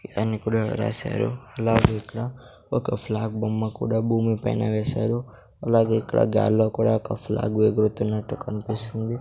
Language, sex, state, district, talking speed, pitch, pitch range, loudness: Telugu, male, Andhra Pradesh, Sri Satya Sai, 125 wpm, 110 Hz, 110-115 Hz, -24 LUFS